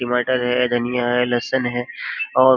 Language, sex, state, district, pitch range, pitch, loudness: Hindi, male, Uttar Pradesh, Jyotiba Phule Nagar, 120-125 Hz, 125 Hz, -20 LUFS